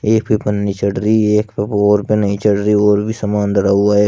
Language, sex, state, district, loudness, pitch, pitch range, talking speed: Hindi, male, Uttar Pradesh, Shamli, -15 LUFS, 105 Hz, 100-105 Hz, 280 wpm